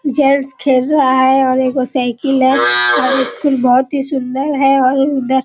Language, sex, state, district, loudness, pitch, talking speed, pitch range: Hindi, female, Bihar, Kishanganj, -13 LUFS, 265 Hz, 175 wpm, 255-275 Hz